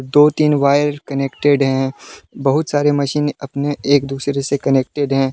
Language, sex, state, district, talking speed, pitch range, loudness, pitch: Hindi, male, Jharkhand, Deoghar, 155 wpm, 135-145 Hz, -17 LUFS, 140 Hz